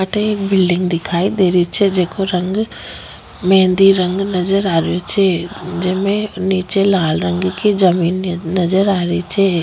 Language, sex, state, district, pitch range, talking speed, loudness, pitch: Rajasthani, female, Rajasthan, Nagaur, 175-195 Hz, 155 wpm, -16 LUFS, 185 Hz